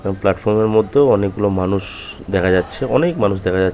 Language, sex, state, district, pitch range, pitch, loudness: Bengali, male, West Bengal, Kolkata, 95-105 Hz, 95 Hz, -17 LUFS